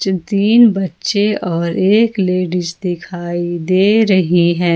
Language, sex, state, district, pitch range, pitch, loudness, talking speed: Hindi, female, Jharkhand, Ranchi, 175-200 Hz, 185 Hz, -14 LUFS, 115 wpm